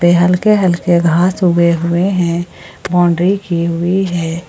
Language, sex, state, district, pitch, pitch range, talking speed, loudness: Hindi, female, Jharkhand, Ranchi, 175 Hz, 170-180 Hz, 145 wpm, -13 LUFS